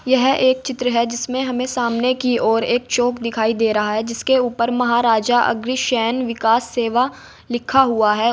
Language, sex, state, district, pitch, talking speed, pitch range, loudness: Hindi, female, Uttar Pradesh, Saharanpur, 240 Hz, 175 wpm, 230-255 Hz, -18 LUFS